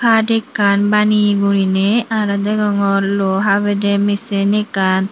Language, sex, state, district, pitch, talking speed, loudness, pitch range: Chakma, female, Tripura, Unakoti, 205 Hz, 115 wpm, -15 LUFS, 200-210 Hz